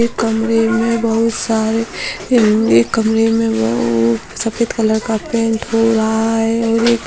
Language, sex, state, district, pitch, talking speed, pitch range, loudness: Hindi, female, Bihar, Sitamarhi, 225 Hz, 160 wpm, 220-230 Hz, -15 LUFS